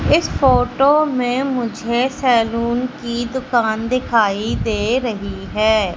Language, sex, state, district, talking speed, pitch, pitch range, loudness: Hindi, female, Madhya Pradesh, Katni, 110 wpm, 240 Hz, 225-255 Hz, -18 LUFS